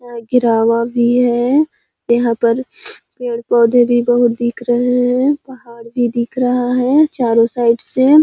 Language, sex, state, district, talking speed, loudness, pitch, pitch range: Hindi, female, Chhattisgarh, Sarguja, 155 wpm, -15 LUFS, 240 Hz, 235-250 Hz